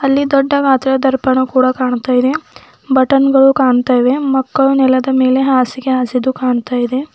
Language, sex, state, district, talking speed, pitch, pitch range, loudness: Kannada, female, Karnataka, Bidar, 140 wpm, 260 Hz, 255-270 Hz, -13 LUFS